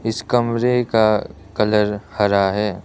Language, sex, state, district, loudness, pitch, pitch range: Hindi, male, Arunachal Pradesh, Lower Dibang Valley, -18 LUFS, 105 Hz, 105-115 Hz